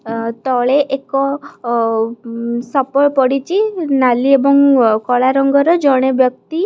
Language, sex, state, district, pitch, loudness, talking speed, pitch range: Odia, female, Odisha, Khordha, 270 Hz, -14 LUFS, 135 wpm, 240-280 Hz